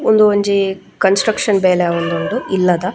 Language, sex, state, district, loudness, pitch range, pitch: Tulu, female, Karnataka, Dakshina Kannada, -15 LUFS, 180-205 Hz, 190 Hz